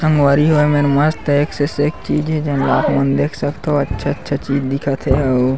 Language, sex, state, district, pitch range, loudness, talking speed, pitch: Chhattisgarhi, male, Chhattisgarh, Sarguja, 135-150 Hz, -16 LUFS, 225 wpm, 145 Hz